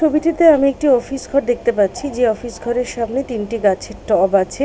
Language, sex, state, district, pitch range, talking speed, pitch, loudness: Bengali, female, West Bengal, Paschim Medinipur, 230-280 Hz, 195 wpm, 245 Hz, -17 LUFS